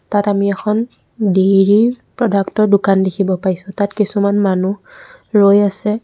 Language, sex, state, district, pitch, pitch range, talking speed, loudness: Assamese, female, Assam, Kamrup Metropolitan, 200 Hz, 195-210 Hz, 130 wpm, -15 LUFS